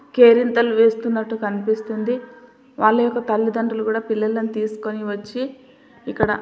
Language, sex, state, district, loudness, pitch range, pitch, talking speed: Telugu, female, Telangana, Karimnagar, -20 LUFS, 215-240 Hz, 225 Hz, 110 wpm